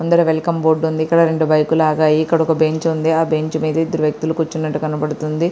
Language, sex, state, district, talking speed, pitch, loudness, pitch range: Telugu, female, Andhra Pradesh, Srikakulam, 205 wpm, 160 Hz, -17 LUFS, 155-160 Hz